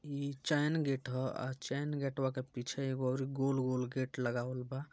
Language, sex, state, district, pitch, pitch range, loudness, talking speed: Bhojpuri, male, Bihar, Gopalganj, 130 Hz, 130-140 Hz, -37 LUFS, 180 wpm